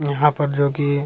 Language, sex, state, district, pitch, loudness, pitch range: Hindi, male, Bihar, Jamui, 145 Hz, -19 LUFS, 140-145 Hz